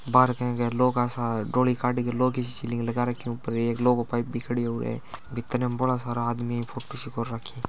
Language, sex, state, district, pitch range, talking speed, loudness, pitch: Marwari, male, Rajasthan, Churu, 120-125 Hz, 185 wpm, -27 LUFS, 120 Hz